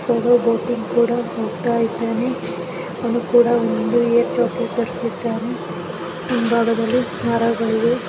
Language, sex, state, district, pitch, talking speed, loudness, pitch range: Kannada, female, Karnataka, Mysore, 235 Hz, 60 wpm, -20 LUFS, 230-240 Hz